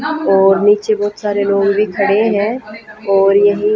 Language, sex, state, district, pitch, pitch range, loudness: Hindi, female, Haryana, Jhajjar, 205 Hz, 200-215 Hz, -13 LUFS